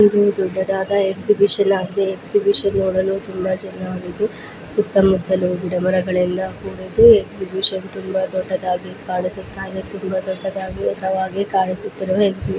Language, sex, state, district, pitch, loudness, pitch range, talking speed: Kannada, female, Karnataka, Dakshina Kannada, 190 Hz, -19 LUFS, 185-195 Hz, 105 wpm